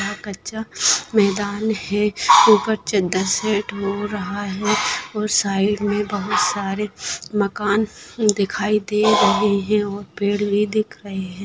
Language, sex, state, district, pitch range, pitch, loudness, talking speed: Hindi, female, Bihar, Gaya, 200-210 Hz, 205 Hz, -20 LUFS, 125 wpm